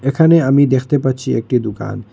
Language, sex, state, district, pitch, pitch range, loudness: Bengali, male, Assam, Hailakandi, 130 Hz, 125-140 Hz, -14 LUFS